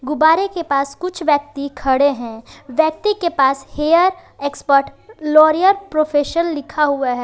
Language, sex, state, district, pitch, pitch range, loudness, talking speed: Hindi, female, Jharkhand, Garhwa, 300 Hz, 275-335 Hz, -17 LUFS, 140 wpm